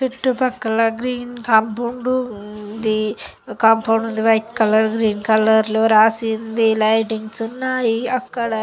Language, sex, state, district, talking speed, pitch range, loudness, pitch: Telugu, female, Andhra Pradesh, Guntur, 105 wpm, 220-240 Hz, -18 LUFS, 225 Hz